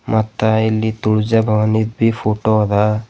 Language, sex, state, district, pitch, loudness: Kannada, male, Karnataka, Bidar, 110 Hz, -16 LUFS